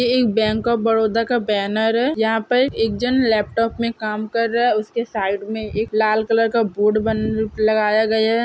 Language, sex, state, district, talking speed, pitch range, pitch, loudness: Hindi, female, Andhra Pradesh, Krishna, 190 wpm, 215-230 Hz, 220 Hz, -19 LUFS